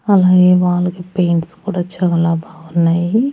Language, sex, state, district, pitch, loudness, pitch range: Telugu, female, Andhra Pradesh, Annamaya, 180 Hz, -15 LUFS, 170-185 Hz